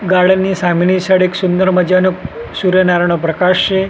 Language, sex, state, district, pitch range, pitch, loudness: Gujarati, male, Gujarat, Gandhinagar, 180-185 Hz, 185 Hz, -13 LUFS